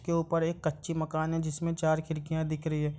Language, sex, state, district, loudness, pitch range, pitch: Hindi, male, Bihar, Gopalganj, -31 LUFS, 155-165 Hz, 160 Hz